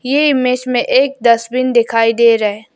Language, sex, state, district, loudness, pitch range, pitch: Hindi, female, Arunachal Pradesh, Lower Dibang Valley, -13 LUFS, 230-255 Hz, 245 Hz